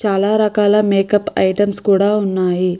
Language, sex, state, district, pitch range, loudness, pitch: Telugu, female, Andhra Pradesh, Krishna, 195-210 Hz, -15 LUFS, 200 Hz